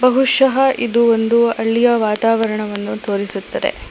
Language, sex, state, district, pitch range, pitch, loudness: Kannada, female, Karnataka, Bangalore, 215-245 Hz, 230 Hz, -15 LUFS